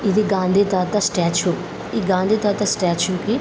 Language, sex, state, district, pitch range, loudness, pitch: Telugu, female, Andhra Pradesh, Krishna, 180-210 Hz, -19 LUFS, 195 Hz